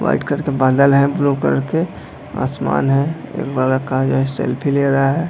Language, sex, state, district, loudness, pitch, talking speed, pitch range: Hindi, male, Jharkhand, Jamtara, -17 LUFS, 140 Hz, 205 wpm, 135-145 Hz